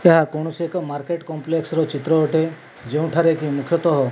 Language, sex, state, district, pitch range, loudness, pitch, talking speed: Odia, male, Odisha, Malkangiri, 150-165 Hz, -21 LUFS, 160 Hz, 175 wpm